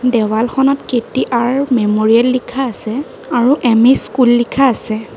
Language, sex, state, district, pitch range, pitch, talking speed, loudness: Assamese, female, Assam, Kamrup Metropolitan, 230-265 Hz, 245 Hz, 115 wpm, -14 LUFS